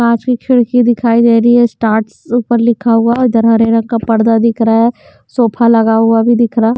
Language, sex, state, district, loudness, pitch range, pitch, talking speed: Hindi, female, Haryana, Jhajjar, -11 LUFS, 225-240 Hz, 230 Hz, 220 wpm